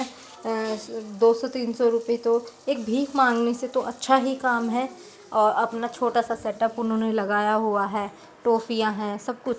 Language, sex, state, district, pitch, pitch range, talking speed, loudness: Hindi, female, Uttar Pradesh, Deoria, 235 Hz, 220-250 Hz, 200 wpm, -24 LUFS